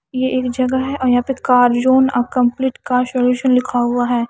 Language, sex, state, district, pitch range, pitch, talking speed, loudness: Hindi, female, Haryana, Charkhi Dadri, 245-260 Hz, 250 Hz, 195 wpm, -16 LUFS